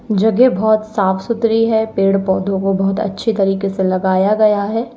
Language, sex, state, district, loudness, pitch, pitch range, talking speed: Hindi, female, Uttar Pradesh, Lalitpur, -15 LUFS, 205 Hz, 195-220 Hz, 180 wpm